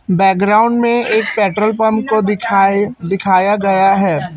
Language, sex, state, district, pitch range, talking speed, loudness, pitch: Hindi, male, Chhattisgarh, Raipur, 195-220 Hz, 135 wpm, -13 LUFS, 205 Hz